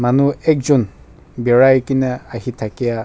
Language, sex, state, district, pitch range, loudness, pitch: Nagamese, male, Nagaland, Kohima, 115-135 Hz, -16 LUFS, 125 Hz